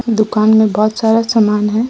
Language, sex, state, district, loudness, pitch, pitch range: Hindi, female, Jharkhand, Deoghar, -13 LUFS, 220 Hz, 215-225 Hz